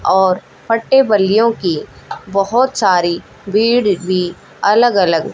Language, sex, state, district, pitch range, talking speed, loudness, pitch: Hindi, male, Haryana, Jhajjar, 185-230 Hz, 110 wpm, -14 LUFS, 200 Hz